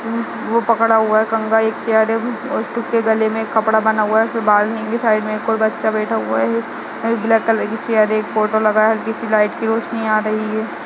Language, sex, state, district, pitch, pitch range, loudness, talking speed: Hindi, female, Uttarakhand, Uttarkashi, 220 Hz, 215-225 Hz, -17 LUFS, 250 wpm